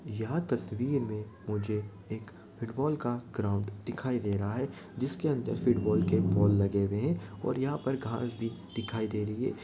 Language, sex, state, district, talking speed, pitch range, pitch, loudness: Maithili, male, Bihar, Supaul, 180 wpm, 100-120 Hz, 110 Hz, -32 LUFS